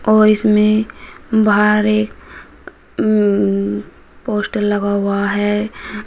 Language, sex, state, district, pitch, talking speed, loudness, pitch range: Hindi, female, Uttar Pradesh, Shamli, 210 Hz, 90 wpm, -16 LUFS, 205-215 Hz